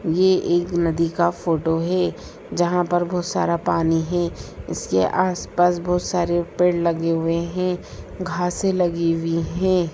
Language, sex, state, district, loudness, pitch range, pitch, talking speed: Hindi, female, Bihar, Sitamarhi, -21 LUFS, 165-180 Hz, 175 Hz, 145 wpm